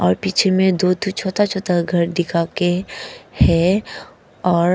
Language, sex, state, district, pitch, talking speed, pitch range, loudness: Hindi, female, Arunachal Pradesh, Papum Pare, 180 Hz, 140 wpm, 170-190 Hz, -18 LUFS